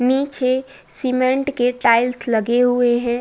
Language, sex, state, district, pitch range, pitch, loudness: Hindi, female, Uttar Pradesh, Budaun, 240-260 Hz, 250 Hz, -18 LUFS